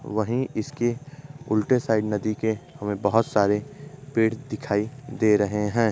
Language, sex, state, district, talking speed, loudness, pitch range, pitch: Hindi, male, Maharashtra, Dhule, 140 wpm, -25 LUFS, 105-130 Hz, 110 Hz